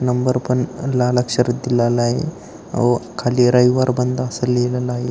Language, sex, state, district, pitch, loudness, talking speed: Marathi, male, Maharashtra, Aurangabad, 125 Hz, -18 LUFS, 165 wpm